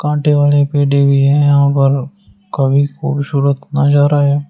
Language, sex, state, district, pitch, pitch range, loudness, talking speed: Hindi, male, Uttar Pradesh, Shamli, 145 Hz, 140-145 Hz, -13 LUFS, 80 wpm